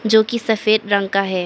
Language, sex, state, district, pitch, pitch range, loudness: Hindi, male, Arunachal Pradesh, Papum Pare, 215 Hz, 195-220 Hz, -17 LUFS